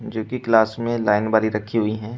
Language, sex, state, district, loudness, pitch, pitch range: Hindi, male, Uttar Pradesh, Shamli, -20 LUFS, 110 Hz, 110-115 Hz